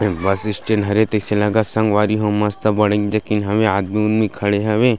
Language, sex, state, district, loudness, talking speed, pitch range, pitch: Chhattisgarhi, male, Chhattisgarh, Sarguja, -18 LUFS, 215 wpm, 105-110 Hz, 105 Hz